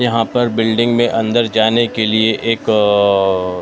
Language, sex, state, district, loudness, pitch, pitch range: Hindi, male, Maharashtra, Mumbai Suburban, -14 LUFS, 110 Hz, 105-115 Hz